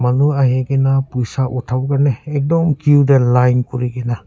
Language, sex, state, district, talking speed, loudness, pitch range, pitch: Nagamese, male, Nagaland, Kohima, 140 wpm, -15 LUFS, 125-140 Hz, 130 Hz